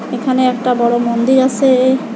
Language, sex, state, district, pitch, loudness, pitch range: Bengali, female, West Bengal, Alipurduar, 255 Hz, -13 LUFS, 240-260 Hz